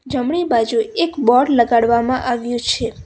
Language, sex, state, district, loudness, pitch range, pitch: Gujarati, female, Gujarat, Valsad, -16 LUFS, 235-260 Hz, 245 Hz